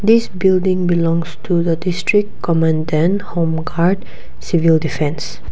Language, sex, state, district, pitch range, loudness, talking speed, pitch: English, female, Nagaland, Kohima, 160-185 Hz, -17 LUFS, 110 wpm, 170 Hz